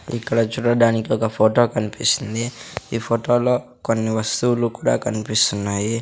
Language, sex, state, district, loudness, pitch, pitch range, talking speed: Telugu, male, Andhra Pradesh, Sri Satya Sai, -20 LUFS, 115 Hz, 110-120 Hz, 120 wpm